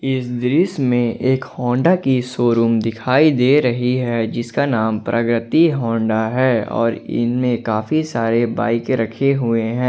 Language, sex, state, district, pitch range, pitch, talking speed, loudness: Hindi, male, Jharkhand, Ranchi, 115-130 Hz, 120 Hz, 145 wpm, -17 LUFS